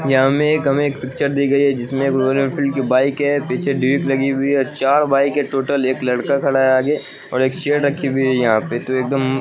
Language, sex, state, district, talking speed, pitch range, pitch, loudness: Hindi, male, Bihar, Katihar, 240 wpm, 130-140 Hz, 135 Hz, -17 LUFS